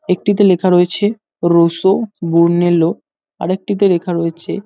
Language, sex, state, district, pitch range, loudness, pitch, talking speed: Bengali, male, West Bengal, North 24 Parganas, 170-205 Hz, -14 LUFS, 185 Hz, 115 wpm